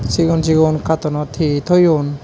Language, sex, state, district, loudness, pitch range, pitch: Chakma, male, Tripura, Dhalai, -15 LUFS, 145-160 Hz, 155 Hz